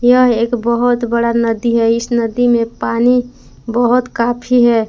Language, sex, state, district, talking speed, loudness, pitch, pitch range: Hindi, female, Jharkhand, Palamu, 160 wpm, -14 LUFS, 235 Hz, 230-245 Hz